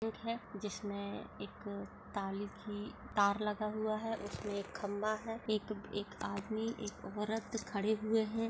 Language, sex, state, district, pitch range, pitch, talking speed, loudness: Hindi, female, Goa, North and South Goa, 205-220 Hz, 210 Hz, 150 wpm, -39 LUFS